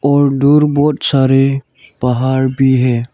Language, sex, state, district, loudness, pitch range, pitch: Hindi, male, Arunachal Pradesh, Lower Dibang Valley, -13 LUFS, 130-140 Hz, 135 Hz